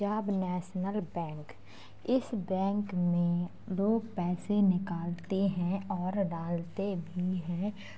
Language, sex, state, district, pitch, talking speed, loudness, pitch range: Hindi, female, Uttar Pradesh, Jalaun, 185 Hz, 105 wpm, -32 LUFS, 175-200 Hz